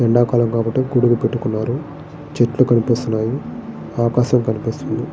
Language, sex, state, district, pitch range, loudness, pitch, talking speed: Telugu, male, Andhra Pradesh, Srikakulam, 115-125 Hz, -18 LUFS, 120 Hz, 105 wpm